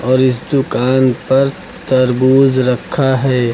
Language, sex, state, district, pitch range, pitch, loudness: Hindi, male, Uttar Pradesh, Lucknow, 125-135 Hz, 130 Hz, -13 LUFS